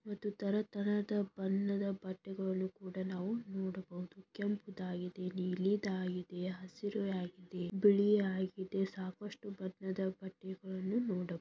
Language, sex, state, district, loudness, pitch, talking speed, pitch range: Kannada, female, Karnataka, Belgaum, -38 LUFS, 190 Hz, 90 wpm, 185-205 Hz